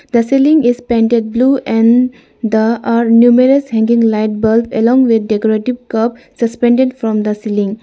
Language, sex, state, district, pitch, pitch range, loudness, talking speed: English, female, Arunachal Pradesh, Lower Dibang Valley, 235 Hz, 225-250 Hz, -12 LUFS, 155 wpm